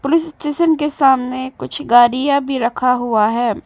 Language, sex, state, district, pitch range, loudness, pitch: Hindi, female, Arunachal Pradesh, Papum Pare, 240-295 Hz, -16 LUFS, 265 Hz